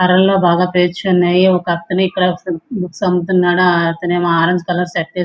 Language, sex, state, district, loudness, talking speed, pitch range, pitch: Telugu, male, Andhra Pradesh, Srikakulam, -14 LUFS, 160 wpm, 175-185 Hz, 180 Hz